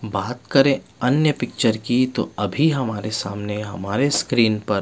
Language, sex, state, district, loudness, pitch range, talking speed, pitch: Hindi, male, Bihar, Patna, -21 LUFS, 105-130 Hz, 160 wpm, 120 Hz